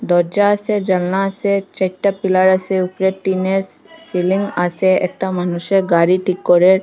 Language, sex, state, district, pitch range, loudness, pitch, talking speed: Bengali, female, Assam, Hailakandi, 180-195 Hz, -16 LUFS, 190 Hz, 140 wpm